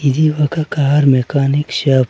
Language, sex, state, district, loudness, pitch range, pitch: Telugu, male, Andhra Pradesh, Sri Satya Sai, -14 LUFS, 135-150 Hz, 140 Hz